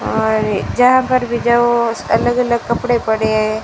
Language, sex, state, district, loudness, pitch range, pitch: Hindi, female, Rajasthan, Bikaner, -15 LUFS, 220-240 Hz, 235 Hz